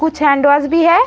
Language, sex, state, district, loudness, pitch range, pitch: Hindi, female, Uttar Pradesh, Etah, -12 LUFS, 285-330 Hz, 305 Hz